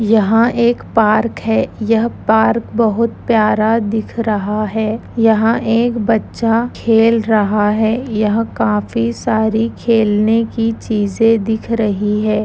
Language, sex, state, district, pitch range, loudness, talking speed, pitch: Hindi, female, Bihar, Bhagalpur, 215-230 Hz, -15 LUFS, 125 wpm, 220 Hz